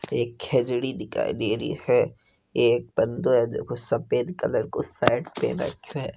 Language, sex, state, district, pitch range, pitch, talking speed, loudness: Hindi, male, Rajasthan, Nagaur, 120-145 Hz, 125 Hz, 165 wpm, -25 LUFS